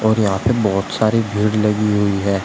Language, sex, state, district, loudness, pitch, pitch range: Hindi, male, Uttar Pradesh, Shamli, -17 LUFS, 105 Hz, 100-110 Hz